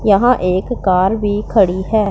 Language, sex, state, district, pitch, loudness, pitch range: Hindi, female, Punjab, Pathankot, 200 Hz, -15 LUFS, 190-220 Hz